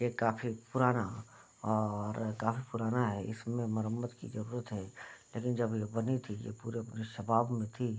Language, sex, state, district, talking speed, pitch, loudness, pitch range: Hindi, male, Bihar, Bhagalpur, 165 wpm, 115 Hz, -36 LUFS, 110-120 Hz